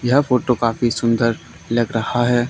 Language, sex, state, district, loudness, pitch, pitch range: Hindi, male, Haryana, Charkhi Dadri, -19 LUFS, 120 Hz, 115-120 Hz